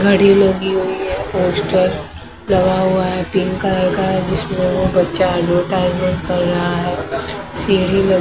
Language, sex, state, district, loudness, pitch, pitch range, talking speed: Hindi, female, Maharashtra, Mumbai Suburban, -16 LUFS, 185 Hz, 180-190 Hz, 160 wpm